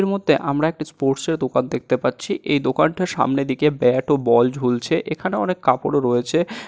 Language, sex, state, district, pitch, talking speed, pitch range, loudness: Bengali, male, West Bengal, Jalpaiguri, 145 Hz, 190 wpm, 130-165 Hz, -20 LUFS